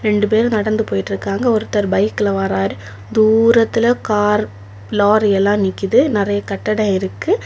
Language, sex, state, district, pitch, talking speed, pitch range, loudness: Tamil, female, Tamil Nadu, Kanyakumari, 205 Hz, 130 wpm, 195-215 Hz, -16 LUFS